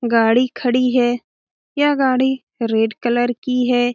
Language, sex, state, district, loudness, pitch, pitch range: Hindi, female, Bihar, Jamui, -18 LUFS, 245 Hz, 235-255 Hz